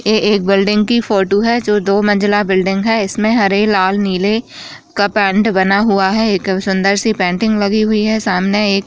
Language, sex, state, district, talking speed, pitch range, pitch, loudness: Hindi, female, Bihar, Jahanabad, 205 wpm, 195-215 Hz, 205 Hz, -13 LUFS